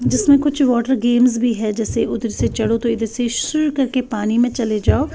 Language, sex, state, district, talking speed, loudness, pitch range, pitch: Hindi, female, Bihar, West Champaran, 220 wpm, -18 LUFS, 225-260 Hz, 240 Hz